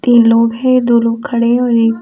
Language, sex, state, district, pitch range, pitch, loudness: Hindi, female, Bihar, Sitamarhi, 230-245 Hz, 235 Hz, -12 LUFS